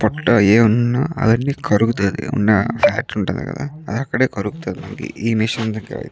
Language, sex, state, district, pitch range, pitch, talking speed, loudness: Telugu, male, Andhra Pradesh, Chittoor, 110-135 Hz, 115 Hz, 135 wpm, -18 LUFS